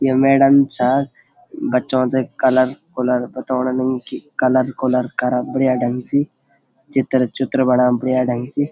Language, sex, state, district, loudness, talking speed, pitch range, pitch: Garhwali, male, Uttarakhand, Uttarkashi, -18 LUFS, 145 wpm, 125-135 Hz, 130 Hz